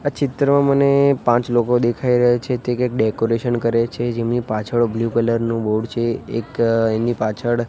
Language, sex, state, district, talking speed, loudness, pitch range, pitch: Gujarati, male, Gujarat, Gandhinagar, 180 wpm, -19 LUFS, 115-125 Hz, 120 Hz